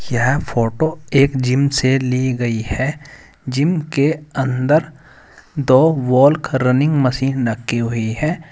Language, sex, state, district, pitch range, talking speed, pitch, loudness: Hindi, male, Uttar Pradesh, Saharanpur, 125-150 Hz, 125 wpm, 135 Hz, -17 LUFS